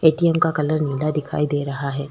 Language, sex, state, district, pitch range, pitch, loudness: Hindi, female, Uttar Pradesh, Jyotiba Phule Nagar, 140-155 Hz, 150 Hz, -21 LUFS